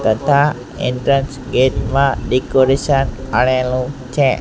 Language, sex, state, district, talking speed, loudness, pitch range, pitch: Gujarati, male, Gujarat, Gandhinagar, 95 wpm, -16 LUFS, 125-135 Hz, 130 Hz